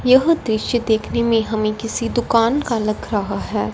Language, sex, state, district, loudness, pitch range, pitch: Hindi, male, Punjab, Fazilka, -19 LUFS, 215-240 Hz, 225 Hz